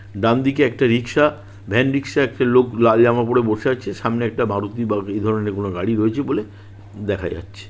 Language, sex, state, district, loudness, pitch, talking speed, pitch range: Bengali, male, West Bengal, Purulia, -19 LUFS, 110 Hz, 195 wpm, 100-125 Hz